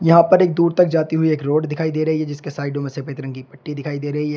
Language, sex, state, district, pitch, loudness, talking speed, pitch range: Hindi, male, Uttar Pradesh, Shamli, 150 Hz, -19 LUFS, 330 wpm, 140-160 Hz